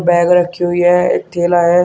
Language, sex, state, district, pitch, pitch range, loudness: Hindi, male, Uttar Pradesh, Shamli, 175 Hz, 175-180 Hz, -13 LUFS